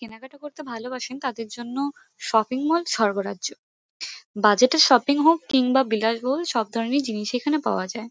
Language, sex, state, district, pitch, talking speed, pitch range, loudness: Bengali, female, West Bengal, Kolkata, 255 Hz, 150 wpm, 225-280 Hz, -22 LUFS